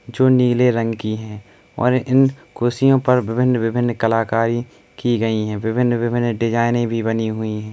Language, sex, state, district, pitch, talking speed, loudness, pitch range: Hindi, male, Uttar Pradesh, Etah, 120 Hz, 170 wpm, -18 LUFS, 115-125 Hz